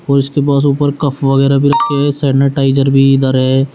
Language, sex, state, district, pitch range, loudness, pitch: Hindi, male, Uttar Pradesh, Shamli, 135-140 Hz, -12 LUFS, 140 Hz